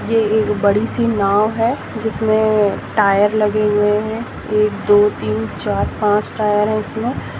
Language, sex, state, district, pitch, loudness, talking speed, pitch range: Hindi, female, Jharkhand, Sahebganj, 210 Hz, -17 LUFS, 145 wpm, 205-220 Hz